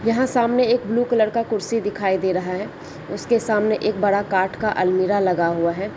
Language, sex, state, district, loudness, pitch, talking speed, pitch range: Hindi, female, Chhattisgarh, Bilaspur, -20 LUFS, 210 Hz, 210 wpm, 190-230 Hz